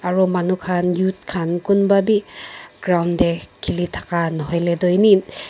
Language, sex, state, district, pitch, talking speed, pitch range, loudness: Nagamese, female, Nagaland, Dimapur, 180 Hz, 165 wpm, 170-190 Hz, -19 LUFS